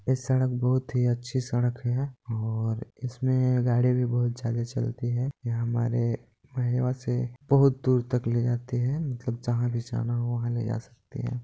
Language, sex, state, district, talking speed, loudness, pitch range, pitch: Hindi, male, Chhattisgarh, Balrampur, 185 wpm, -27 LUFS, 120-130 Hz, 120 Hz